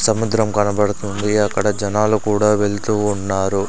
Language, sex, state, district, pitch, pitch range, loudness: Telugu, male, Andhra Pradesh, Sri Satya Sai, 105 Hz, 100-105 Hz, -18 LUFS